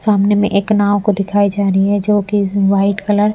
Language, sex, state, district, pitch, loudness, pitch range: Hindi, female, Bihar, Patna, 205 Hz, -14 LUFS, 200-205 Hz